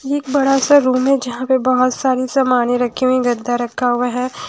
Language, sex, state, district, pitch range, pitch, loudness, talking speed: Hindi, female, Haryana, Jhajjar, 245-270 Hz, 255 Hz, -16 LUFS, 240 wpm